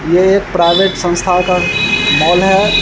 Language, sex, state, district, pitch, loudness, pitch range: Hindi, male, Bihar, Vaishali, 185 Hz, -11 LUFS, 175-195 Hz